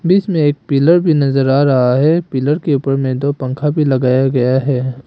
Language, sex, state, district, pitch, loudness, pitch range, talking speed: Hindi, male, Arunachal Pradesh, Papum Pare, 140 Hz, -14 LUFS, 130-150 Hz, 210 wpm